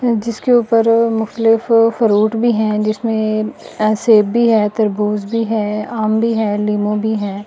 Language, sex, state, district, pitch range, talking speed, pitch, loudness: Hindi, female, Delhi, New Delhi, 210-230 Hz, 160 wpm, 220 Hz, -15 LUFS